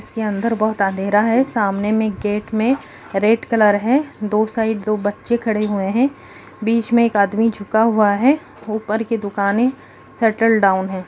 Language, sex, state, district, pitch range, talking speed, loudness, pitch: Hindi, female, Bihar, East Champaran, 205-230 Hz, 175 wpm, -18 LUFS, 215 Hz